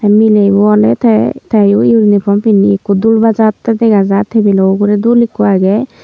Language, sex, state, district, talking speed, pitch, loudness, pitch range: Chakma, female, Tripura, Unakoti, 160 wpm, 210 Hz, -10 LUFS, 200-225 Hz